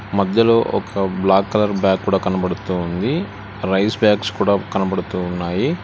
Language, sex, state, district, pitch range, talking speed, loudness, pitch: Telugu, male, Telangana, Hyderabad, 95-105 Hz, 135 wpm, -18 LUFS, 100 Hz